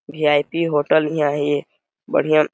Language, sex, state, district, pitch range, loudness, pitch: Awadhi, male, Chhattisgarh, Balrampur, 145-155 Hz, -19 LUFS, 150 Hz